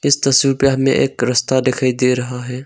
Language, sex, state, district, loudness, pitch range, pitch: Hindi, male, Arunachal Pradesh, Longding, -15 LUFS, 125-135 Hz, 130 Hz